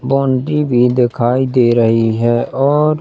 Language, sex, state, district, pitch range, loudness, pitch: Hindi, male, Madhya Pradesh, Katni, 120-135 Hz, -13 LUFS, 125 Hz